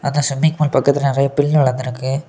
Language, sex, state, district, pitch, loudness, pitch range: Tamil, male, Tamil Nadu, Kanyakumari, 140 Hz, -17 LUFS, 135-145 Hz